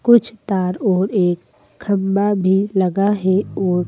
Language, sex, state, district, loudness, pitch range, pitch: Hindi, female, Madhya Pradesh, Bhopal, -18 LUFS, 185-205 Hz, 190 Hz